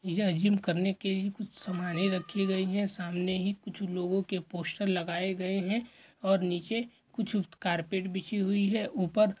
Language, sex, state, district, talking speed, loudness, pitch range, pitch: Hindi, male, Chhattisgarh, Korba, 165 wpm, -31 LUFS, 180-205 Hz, 195 Hz